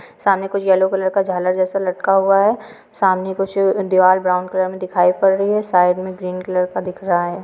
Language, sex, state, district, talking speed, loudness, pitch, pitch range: Hindi, female, Andhra Pradesh, Guntur, 235 wpm, -17 LUFS, 185 Hz, 185-195 Hz